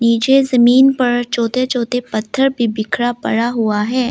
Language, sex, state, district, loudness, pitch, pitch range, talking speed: Hindi, female, Arunachal Pradesh, Lower Dibang Valley, -15 LUFS, 245 Hz, 230-255 Hz, 160 wpm